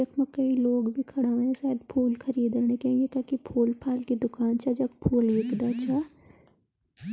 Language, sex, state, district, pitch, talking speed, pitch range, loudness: Garhwali, female, Uttarakhand, Tehri Garhwal, 250 Hz, 170 wpm, 240-260 Hz, -27 LUFS